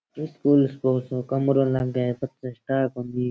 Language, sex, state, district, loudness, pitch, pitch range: Rajasthani, male, Rajasthan, Churu, -24 LUFS, 130 Hz, 125-135 Hz